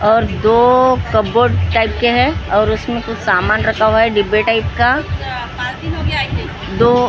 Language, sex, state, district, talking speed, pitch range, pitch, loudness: Hindi, female, Maharashtra, Gondia, 150 wpm, 215-240 Hz, 225 Hz, -14 LUFS